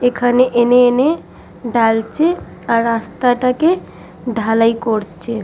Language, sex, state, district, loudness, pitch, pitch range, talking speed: Bengali, female, West Bengal, Purulia, -15 LUFS, 240 Hz, 225-250 Hz, 100 wpm